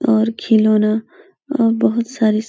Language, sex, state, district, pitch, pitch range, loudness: Hindi, female, Uttar Pradesh, Etah, 225 Hz, 220-235 Hz, -16 LUFS